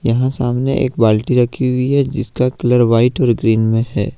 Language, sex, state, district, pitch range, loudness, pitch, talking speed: Hindi, male, Jharkhand, Ranchi, 115-130 Hz, -15 LUFS, 125 Hz, 200 wpm